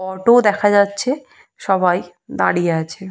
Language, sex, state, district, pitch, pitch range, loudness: Bengali, female, Jharkhand, Jamtara, 195 Hz, 180-230 Hz, -17 LUFS